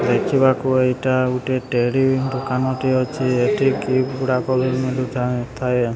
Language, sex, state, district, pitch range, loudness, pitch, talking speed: Odia, male, Odisha, Sambalpur, 125-130 Hz, -19 LUFS, 130 Hz, 80 wpm